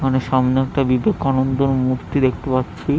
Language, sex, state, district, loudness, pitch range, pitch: Bengali, male, West Bengal, Jalpaiguri, -19 LUFS, 130-135 Hz, 130 Hz